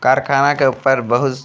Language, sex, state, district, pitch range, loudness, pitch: Bhojpuri, male, Uttar Pradesh, Deoria, 130-140 Hz, -15 LUFS, 135 Hz